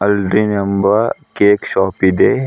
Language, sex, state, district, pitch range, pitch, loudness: Kannada, male, Karnataka, Bidar, 95-105 Hz, 100 Hz, -14 LUFS